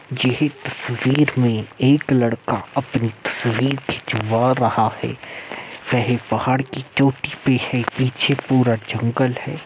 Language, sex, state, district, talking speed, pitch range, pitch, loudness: Hindi, male, Uttar Pradesh, Muzaffarnagar, 125 wpm, 115-135 Hz, 125 Hz, -20 LUFS